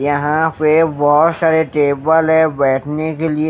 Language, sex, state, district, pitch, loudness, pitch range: Hindi, male, Maharashtra, Mumbai Suburban, 155 Hz, -14 LUFS, 145-160 Hz